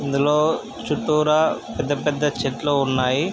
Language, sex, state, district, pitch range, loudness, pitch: Telugu, male, Andhra Pradesh, Krishna, 140-150 Hz, -21 LUFS, 145 Hz